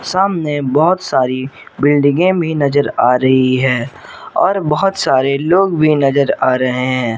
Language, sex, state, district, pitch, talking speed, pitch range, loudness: Hindi, male, Jharkhand, Garhwa, 145 Hz, 150 wpm, 130-180 Hz, -14 LUFS